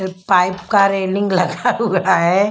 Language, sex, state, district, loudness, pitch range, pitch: Hindi, female, Punjab, Kapurthala, -16 LUFS, 185-200 Hz, 190 Hz